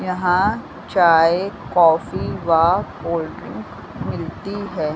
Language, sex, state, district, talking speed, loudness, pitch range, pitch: Hindi, female, Uttar Pradesh, Varanasi, 85 wpm, -19 LUFS, 165-185 Hz, 170 Hz